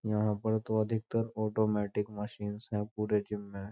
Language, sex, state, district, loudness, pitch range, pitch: Hindi, male, Uttar Pradesh, Jyotiba Phule Nagar, -33 LUFS, 105-110 Hz, 105 Hz